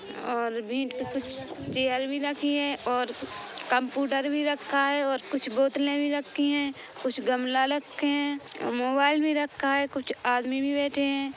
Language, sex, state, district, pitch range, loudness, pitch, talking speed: Hindi, female, Chhattisgarh, Bilaspur, 255-285 Hz, -28 LUFS, 275 Hz, 165 wpm